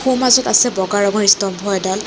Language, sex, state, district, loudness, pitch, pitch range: Assamese, female, Assam, Kamrup Metropolitan, -14 LUFS, 200 Hz, 195-245 Hz